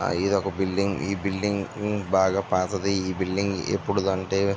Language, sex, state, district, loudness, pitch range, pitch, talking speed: Telugu, male, Andhra Pradesh, Visakhapatnam, -25 LUFS, 95-100 Hz, 95 Hz, 160 wpm